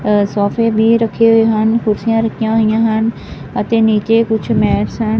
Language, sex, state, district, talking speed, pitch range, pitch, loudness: Punjabi, male, Punjab, Fazilka, 160 wpm, 215-225 Hz, 225 Hz, -14 LUFS